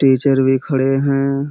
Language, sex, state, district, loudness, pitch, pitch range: Hindi, male, Uttar Pradesh, Budaun, -16 LUFS, 135 Hz, 135-140 Hz